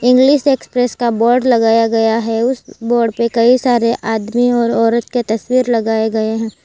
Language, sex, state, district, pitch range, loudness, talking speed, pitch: Hindi, female, Gujarat, Valsad, 225-245 Hz, -14 LUFS, 180 wpm, 235 Hz